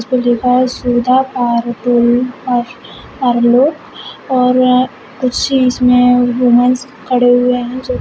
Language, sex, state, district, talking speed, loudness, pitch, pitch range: Hindi, female, Uttar Pradesh, Shamli, 95 wpm, -13 LUFS, 250 Hz, 245-255 Hz